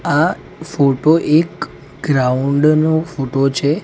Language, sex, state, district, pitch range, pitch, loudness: Gujarati, male, Gujarat, Gandhinagar, 135-155 Hz, 150 Hz, -15 LUFS